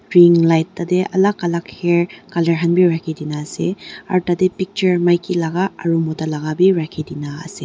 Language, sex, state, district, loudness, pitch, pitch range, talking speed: Nagamese, female, Nagaland, Dimapur, -17 LUFS, 170 Hz, 160-180 Hz, 180 wpm